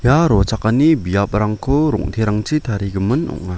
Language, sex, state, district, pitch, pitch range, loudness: Garo, male, Meghalaya, West Garo Hills, 105 Hz, 100-135 Hz, -17 LUFS